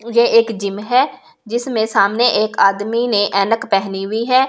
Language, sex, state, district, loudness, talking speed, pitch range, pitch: Hindi, female, Delhi, New Delhi, -16 LUFS, 185 wpm, 200-240 Hz, 225 Hz